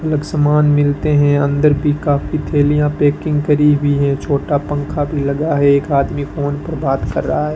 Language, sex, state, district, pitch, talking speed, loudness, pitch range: Hindi, male, Rajasthan, Bikaner, 145 Hz, 200 wpm, -15 LUFS, 145-150 Hz